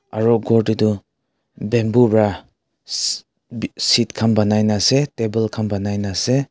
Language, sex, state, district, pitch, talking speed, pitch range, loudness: Nagamese, male, Nagaland, Kohima, 110 Hz, 145 wpm, 105-115 Hz, -18 LUFS